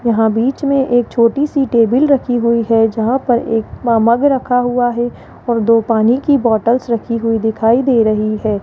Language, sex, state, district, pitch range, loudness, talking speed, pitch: Hindi, male, Rajasthan, Jaipur, 225-255 Hz, -14 LUFS, 200 wpm, 235 Hz